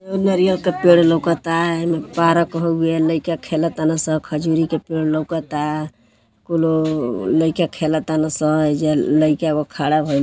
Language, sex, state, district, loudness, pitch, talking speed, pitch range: Bhojpuri, female, Uttar Pradesh, Gorakhpur, -18 LUFS, 160 Hz, 140 wpm, 155-165 Hz